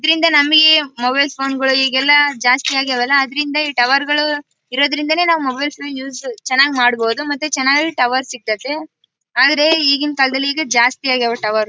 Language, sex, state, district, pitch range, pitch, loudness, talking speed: Kannada, female, Karnataka, Bellary, 255-295 Hz, 275 Hz, -14 LUFS, 175 wpm